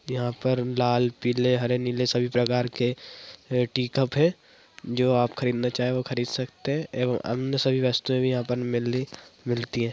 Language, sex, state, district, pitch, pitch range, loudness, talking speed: Hindi, female, Bihar, Madhepura, 125 Hz, 120-130 Hz, -26 LUFS, 180 wpm